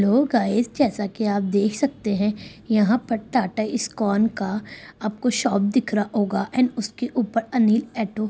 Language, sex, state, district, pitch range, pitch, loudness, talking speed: Hindi, female, Bihar, Sitamarhi, 210-240 Hz, 220 Hz, -22 LUFS, 165 wpm